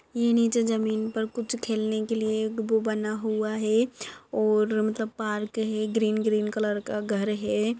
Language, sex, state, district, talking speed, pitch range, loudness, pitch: Hindi, female, Maharashtra, Dhule, 170 wpm, 215-225 Hz, -27 LUFS, 220 Hz